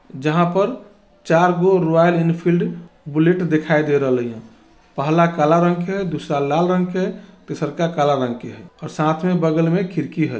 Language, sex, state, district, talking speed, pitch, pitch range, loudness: Bajjika, male, Bihar, Vaishali, 175 wpm, 165 Hz, 150-180 Hz, -18 LUFS